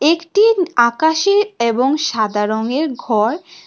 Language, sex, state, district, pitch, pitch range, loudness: Bengali, female, Tripura, West Tripura, 300 Hz, 235-340 Hz, -16 LUFS